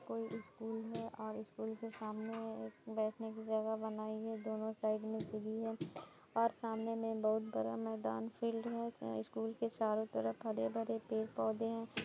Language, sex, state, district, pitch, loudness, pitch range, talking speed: Hindi, female, Bihar, Lakhisarai, 220 Hz, -41 LUFS, 215-225 Hz, 165 wpm